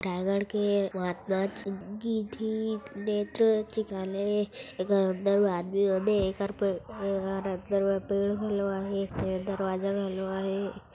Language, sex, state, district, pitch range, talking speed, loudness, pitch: Chhattisgarhi, female, Chhattisgarh, Raigarh, 195-205 Hz, 105 wpm, -30 LUFS, 200 Hz